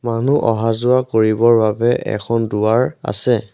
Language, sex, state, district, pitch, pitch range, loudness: Assamese, male, Assam, Sonitpur, 115 Hz, 110-120 Hz, -16 LUFS